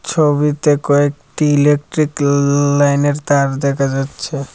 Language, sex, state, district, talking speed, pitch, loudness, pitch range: Bengali, male, Tripura, Dhalai, 105 wpm, 145 Hz, -15 LUFS, 140-145 Hz